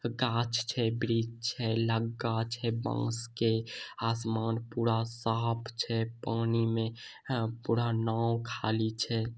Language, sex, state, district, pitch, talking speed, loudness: Maithili, male, Bihar, Samastipur, 115 Hz, 120 wpm, -32 LUFS